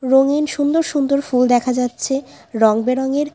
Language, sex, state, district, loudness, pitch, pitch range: Bengali, female, West Bengal, Alipurduar, -17 LUFS, 270 Hz, 250-285 Hz